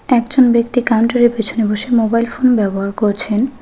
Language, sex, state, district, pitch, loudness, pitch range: Bengali, female, West Bengal, Alipurduar, 230 Hz, -14 LUFS, 220-245 Hz